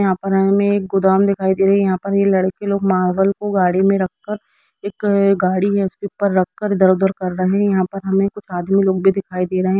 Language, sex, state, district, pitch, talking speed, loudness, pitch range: Hindi, female, Bihar, Jamui, 195 Hz, 255 wpm, -17 LUFS, 185-200 Hz